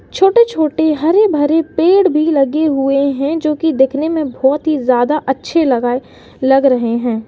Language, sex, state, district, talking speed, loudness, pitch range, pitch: Hindi, female, Uttar Pradesh, Hamirpur, 155 wpm, -14 LUFS, 270-320 Hz, 300 Hz